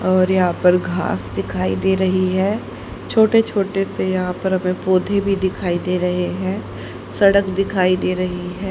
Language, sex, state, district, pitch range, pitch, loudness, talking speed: Hindi, female, Haryana, Rohtak, 180-195 Hz, 185 Hz, -19 LUFS, 170 wpm